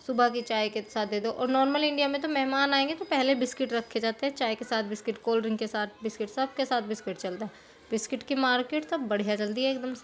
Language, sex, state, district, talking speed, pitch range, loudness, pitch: Hindi, female, Uttar Pradesh, Jyotiba Phule Nagar, 255 wpm, 220-270 Hz, -29 LUFS, 245 Hz